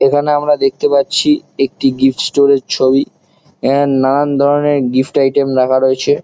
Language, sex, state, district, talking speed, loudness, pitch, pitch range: Bengali, male, West Bengal, Jalpaiguri, 165 wpm, -13 LUFS, 140 Hz, 135-145 Hz